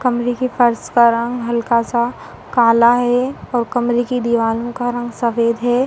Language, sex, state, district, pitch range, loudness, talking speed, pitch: Hindi, female, Uttar Pradesh, Hamirpur, 235-245 Hz, -17 LUFS, 165 wpm, 240 Hz